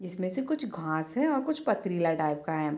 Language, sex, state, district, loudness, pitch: Hindi, female, Bihar, Gopalganj, -30 LUFS, 185 Hz